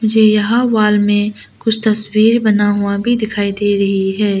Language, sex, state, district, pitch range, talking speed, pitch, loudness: Hindi, female, Arunachal Pradesh, Lower Dibang Valley, 205-220 Hz, 175 wpm, 210 Hz, -14 LUFS